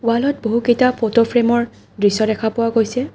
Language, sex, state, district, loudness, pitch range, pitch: Assamese, female, Assam, Kamrup Metropolitan, -17 LUFS, 225-240 Hz, 230 Hz